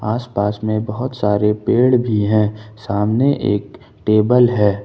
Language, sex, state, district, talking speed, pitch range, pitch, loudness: Hindi, male, Jharkhand, Ranchi, 150 wpm, 105-120 Hz, 110 Hz, -17 LUFS